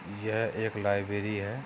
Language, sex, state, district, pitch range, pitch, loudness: Hindi, male, Maharashtra, Sindhudurg, 100-110 Hz, 105 Hz, -31 LUFS